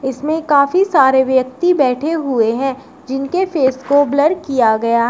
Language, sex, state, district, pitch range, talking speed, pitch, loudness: Hindi, female, Uttar Pradesh, Shamli, 260-305 Hz, 165 wpm, 270 Hz, -15 LUFS